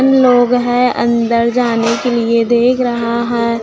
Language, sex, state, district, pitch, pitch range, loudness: Hindi, female, Chhattisgarh, Raipur, 235 Hz, 235-245 Hz, -13 LUFS